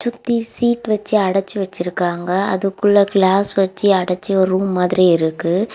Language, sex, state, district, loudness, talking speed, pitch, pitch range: Tamil, female, Tamil Nadu, Kanyakumari, -17 LUFS, 135 wpm, 195 Hz, 185-205 Hz